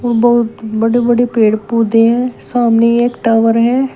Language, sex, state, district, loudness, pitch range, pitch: Hindi, female, Uttar Pradesh, Shamli, -12 LUFS, 225-240 Hz, 235 Hz